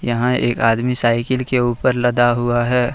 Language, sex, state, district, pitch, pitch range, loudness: Hindi, male, Jharkhand, Ranchi, 120 Hz, 120-125 Hz, -17 LUFS